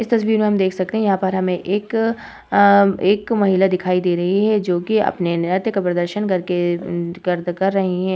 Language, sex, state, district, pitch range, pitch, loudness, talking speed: Hindi, female, Bihar, Vaishali, 180-205 Hz, 190 Hz, -18 LUFS, 215 wpm